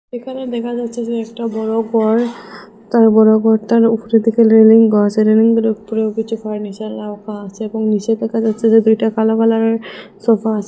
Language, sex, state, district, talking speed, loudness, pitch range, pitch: Bengali, female, Assam, Hailakandi, 155 wpm, -14 LUFS, 215-225 Hz, 220 Hz